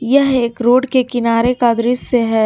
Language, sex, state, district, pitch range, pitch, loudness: Hindi, female, Jharkhand, Garhwa, 235-255 Hz, 245 Hz, -14 LUFS